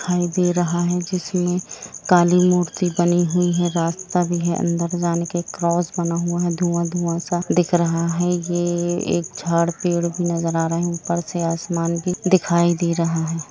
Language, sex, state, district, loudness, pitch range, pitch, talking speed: Hindi, female, Jharkhand, Jamtara, -20 LUFS, 170-175 Hz, 175 Hz, 190 wpm